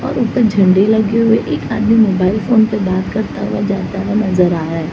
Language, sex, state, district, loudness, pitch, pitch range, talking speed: Hindi, female, Maharashtra, Mumbai Suburban, -14 LUFS, 205 Hz, 185-220 Hz, 245 wpm